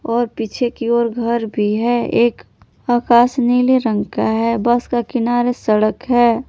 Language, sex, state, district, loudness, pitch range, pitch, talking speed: Hindi, female, Jharkhand, Palamu, -16 LUFS, 230-245 Hz, 235 Hz, 165 wpm